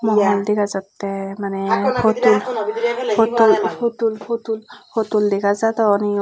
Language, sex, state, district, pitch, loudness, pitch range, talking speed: Chakma, female, Tripura, Unakoti, 215 Hz, -19 LUFS, 200-230 Hz, 115 wpm